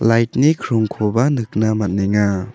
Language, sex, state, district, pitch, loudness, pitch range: Garo, male, Meghalaya, South Garo Hills, 110 Hz, -17 LUFS, 105-120 Hz